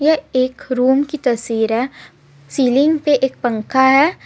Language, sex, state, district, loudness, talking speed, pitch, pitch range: Hindi, female, Jharkhand, Ranchi, -16 LUFS, 170 wpm, 260 Hz, 240-285 Hz